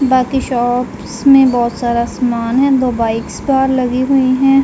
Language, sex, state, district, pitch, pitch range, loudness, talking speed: Hindi, female, Uttar Pradesh, Jalaun, 255 Hz, 240-265 Hz, -14 LUFS, 170 wpm